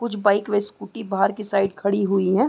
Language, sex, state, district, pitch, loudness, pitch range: Hindi, female, Chhattisgarh, Raigarh, 200 Hz, -22 LUFS, 195-210 Hz